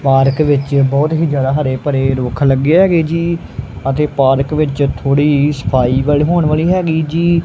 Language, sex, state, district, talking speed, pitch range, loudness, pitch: Punjabi, male, Punjab, Kapurthala, 170 wpm, 135-160 Hz, -14 LUFS, 145 Hz